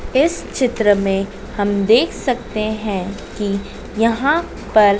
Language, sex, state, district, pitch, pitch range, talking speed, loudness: Hindi, female, Madhya Pradesh, Dhar, 215 Hz, 200-235 Hz, 120 wpm, -18 LUFS